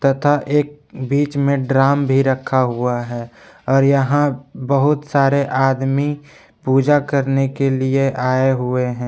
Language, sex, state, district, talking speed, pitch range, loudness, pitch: Hindi, male, Jharkhand, Palamu, 140 wpm, 130-140 Hz, -17 LUFS, 135 Hz